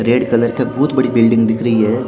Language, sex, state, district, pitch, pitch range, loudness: Hindi, male, Haryana, Jhajjar, 120 Hz, 115-125 Hz, -14 LUFS